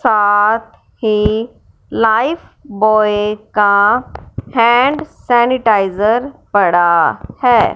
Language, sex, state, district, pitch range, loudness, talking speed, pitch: Hindi, male, Punjab, Fazilka, 205-240 Hz, -13 LUFS, 60 wpm, 215 Hz